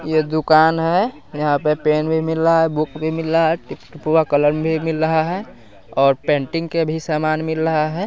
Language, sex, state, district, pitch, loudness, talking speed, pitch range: Hindi, male, Bihar, West Champaran, 160 Hz, -18 LUFS, 215 wpm, 150-160 Hz